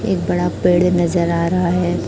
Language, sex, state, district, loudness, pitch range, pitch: Hindi, male, Chhattisgarh, Raipur, -17 LUFS, 170-180 Hz, 175 Hz